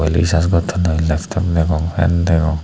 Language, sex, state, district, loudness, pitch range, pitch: Chakma, male, Tripura, Unakoti, -17 LUFS, 80-85 Hz, 85 Hz